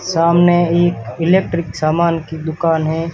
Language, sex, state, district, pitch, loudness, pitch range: Hindi, male, Rajasthan, Barmer, 165 Hz, -15 LUFS, 160-175 Hz